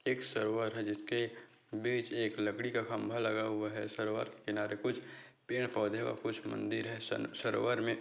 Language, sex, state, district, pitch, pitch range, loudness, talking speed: Hindi, male, Bihar, Jahanabad, 110 Hz, 105-115 Hz, -37 LUFS, 195 wpm